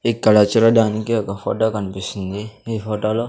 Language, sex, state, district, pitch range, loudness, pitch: Telugu, male, Andhra Pradesh, Sri Satya Sai, 105-115 Hz, -19 LUFS, 110 Hz